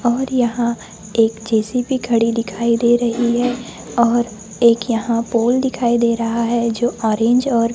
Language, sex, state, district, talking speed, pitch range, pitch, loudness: Hindi, male, Maharashtra, Gondia, 160 wpm, 230-240 Hz, 235 Hz, -17 LUFS